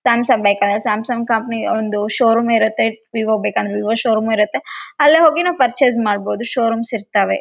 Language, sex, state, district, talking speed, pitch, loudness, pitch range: Kannada, female, Karnataka, Raichur, 170 wpm, 225 Hz, -16 LUFS, 215-245 Hz